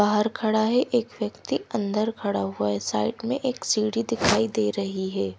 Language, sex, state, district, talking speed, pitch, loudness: Hindi, female, Himachal Pradesh, Shimla, 190 wpm, 210 Hz, -25 LUFS